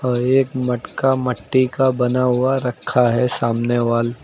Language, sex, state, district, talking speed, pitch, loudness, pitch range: Hindi, male, Uttar Pradesh, Lucknow, 155 wpm, 125 Hz, -18 LUFS, 120-130 Hz